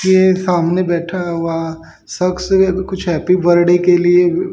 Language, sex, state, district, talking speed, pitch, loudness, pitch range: Hindi, male, Haryana, Jhajjar, 130 wpm, 180 Hz, -14 LUFS, 175-185 Hz